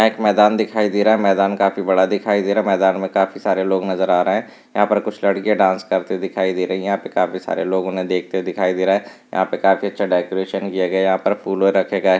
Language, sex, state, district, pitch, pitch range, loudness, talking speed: Hindi, male, Rajasthan, Nagaur, 95 Hz, 95-100 Hz, -18 LUFS, 280 wpm